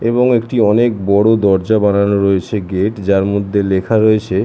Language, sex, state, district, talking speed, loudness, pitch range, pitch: Bengali, male, West Bengal, Jhargram, 160 wpm, -14 LUFS, 100-110 Hz, 100 Hz